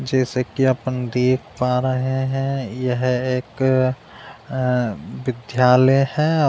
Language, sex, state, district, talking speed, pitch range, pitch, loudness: Hindi, male, Uttar Pradesh, Deoria, 110 wpm, 125-130 Hz, 130 Hz, -20 LUFS